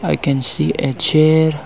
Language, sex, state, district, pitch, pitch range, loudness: English, male, Arunachal Pradesh, Longding, 155 Hz, 135-160 Hz, -15 LUFS